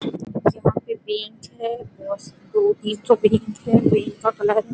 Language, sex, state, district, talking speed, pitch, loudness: Hindi, female, Chhattisgarh, Rajnandgaon, 190 wpm, 230 Hz, -21 LUFS